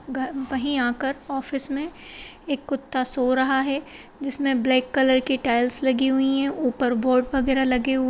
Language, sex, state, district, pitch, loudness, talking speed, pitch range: Hindi, female, Bihar, Madhepura, 265 Hz, -21 LUFS, 170 wpm, 255-275 Hz